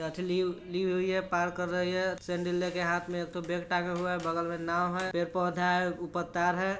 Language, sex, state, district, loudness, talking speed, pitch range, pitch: Hindi, male, Bihar, Sitamarhi, -31 LUFS, 255 wpm, 175-180 Hz, 180 Hz